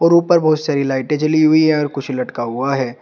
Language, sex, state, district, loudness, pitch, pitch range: Hindi, male, Uttar Pradesh, Shamli, -16 LUFS, 150 Hz, 135-155 Hz